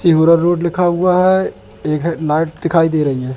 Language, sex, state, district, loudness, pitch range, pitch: Hindi, male, Madhya Pradesh, Katni, -15 LUFS, 155-175 Hz, 165 Hz